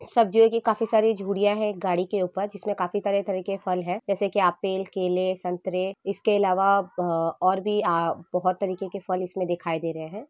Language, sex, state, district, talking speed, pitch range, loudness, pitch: Hindi, female, Jharkhand, Sahebganj, 190 wpm, 180-205 Hz, -25 LUFS, 195 Hz